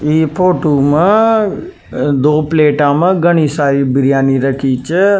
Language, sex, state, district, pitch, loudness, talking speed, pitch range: Rajasthani, male, Rajasthan, Nagaur, 150 Hz, -12 LUFS, 125 wpm, 140-175 Hz